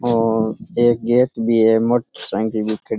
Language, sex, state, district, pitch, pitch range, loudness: Rajasthani, male, Rajasthan, Churu, 115 Hz, 110-120 Hz, -18 LUFS